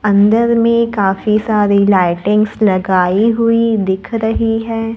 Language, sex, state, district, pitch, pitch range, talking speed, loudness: Hindi, female, Maharashtra, Gondia, 215 Hz, 200-225 Hz, 120 wpm, -13 LUFS